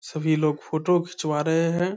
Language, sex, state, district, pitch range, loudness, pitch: Hindi, male, Bihar, Saharsa, 155-175 Hz, -24 LUFS, 160 Hz